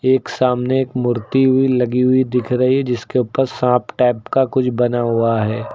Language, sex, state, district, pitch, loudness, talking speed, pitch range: Hindi, male, Uttar Pradesh, Lucknow, 125 Hz, -17 LUFS, 190 wpm, 120-130 Hz